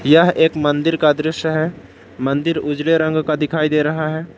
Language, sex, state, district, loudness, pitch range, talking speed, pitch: Hindi, male, Jharkhand, Palamu, -17 LUFS, 150-160 Hz, 190 wpm, 155 Hz